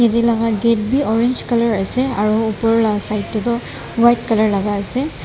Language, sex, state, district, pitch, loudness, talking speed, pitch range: Nagamese, male, Nagaland, Dimapur, 230 Hz, -17 LUFS, 195 wpm, 215-235 Hz